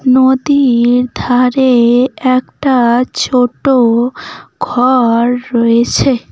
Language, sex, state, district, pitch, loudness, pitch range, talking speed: Bengali, female, West Bengal, Cooch Behar, 250 Hz, -11 LUFS, 240-260 Hz, 55 wpm